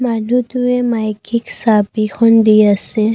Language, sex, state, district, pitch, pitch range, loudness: Assamese, female, Assam, Kamrup Metropolitan, 225 Hz, 215-240 Hz, -14 LUFS